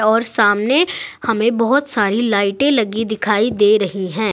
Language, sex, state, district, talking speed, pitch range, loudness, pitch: Hindi, female, Uttar Pradesh, Saharanpur, 150 wpm, 205-235 Hz, -16 LUFS, 220 Hz